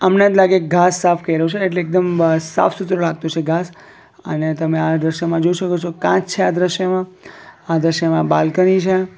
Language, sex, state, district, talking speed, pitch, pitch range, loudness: Gujarati, male, Gujarat, Valsad, 190 wpm, 175 Hz, 165-185 Hz, -17 LUFS